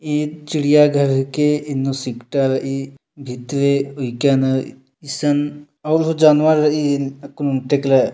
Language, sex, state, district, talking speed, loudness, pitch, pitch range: Sadri, male, Chhattisgarh, Jashpur, 135 wpm, -18 LUFS, 140 Hz, 135-150 Hz